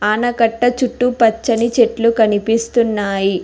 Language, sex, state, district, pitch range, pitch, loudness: Telugu, female, Telangana, Hyderabad, 220-240 Hz, 230 Hz, -15 LUFS